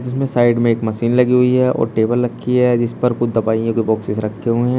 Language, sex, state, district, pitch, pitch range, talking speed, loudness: Hindi, male, Uttar Pradesh, Shamli, 120 Hz, 115-125 Hz, 260 wpm, -16 LUFS